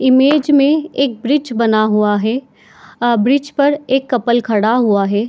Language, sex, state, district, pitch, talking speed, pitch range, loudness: Hindi, female, Chhattisgarh, Bilaspur, 245 Hz, 170 wpm, 220-280 Hz, -14 LUFS